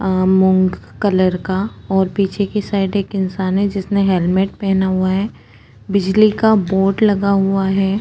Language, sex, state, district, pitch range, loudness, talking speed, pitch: Hindi, female, Uttarakhand, Tehri Garhwal, 190-200 Hz, -16 LUFS, 170 wpm, 195 Hz